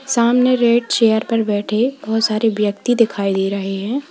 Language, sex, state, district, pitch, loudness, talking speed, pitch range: Hindi, female, Uttar Pradesh, Lalitpur, 225 Hz, -17 LUFS, 175 wpm, 205-240 Hz